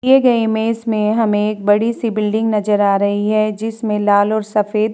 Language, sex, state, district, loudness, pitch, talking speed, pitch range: Hindi, female, Uttar Pradesh, Jalaun, -16 LUFS, 215 Hz, 220 wpm, 210-225 Hz